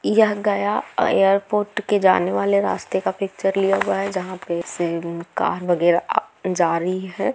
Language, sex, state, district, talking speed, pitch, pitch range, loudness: Magahi, female, Bihar, Gaya, 165 wpm, 195 Hz, 175-200 Hz, -21 LUFS